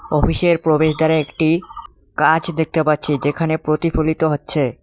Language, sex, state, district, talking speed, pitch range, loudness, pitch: Bengali, male, West Bengal, Cooch Behar, 110 wpm, 155-165 Hz, -18 LUFS, 160 Hz